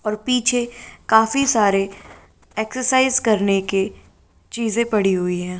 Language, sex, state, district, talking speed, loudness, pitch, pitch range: Hindi, female, Andhra Pradesh, Guntur, 120 wpm, -19 LUFS, 220 Hz, 195-245 Hz